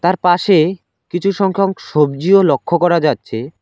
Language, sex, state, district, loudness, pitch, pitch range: Bengali, male, West Bengal, Alipurduar, -15 LUFS, 175 Hz, 155-190 Hz